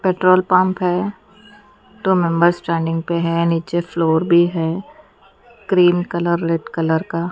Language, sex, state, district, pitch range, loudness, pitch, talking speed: Hindi, female, Odisha, Nuapada, 170-190 Hz, -17 LUFS, 175 Hz, 145 wpm